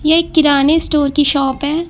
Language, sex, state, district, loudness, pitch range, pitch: Hindi, female, Uttar Pradesh, Lucknow, -13 LUFS, 285-320 Hz, 295 Hz